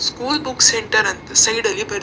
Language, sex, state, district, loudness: Kannada, female, Karnataka, Dakshina Kannada, -15 LUFS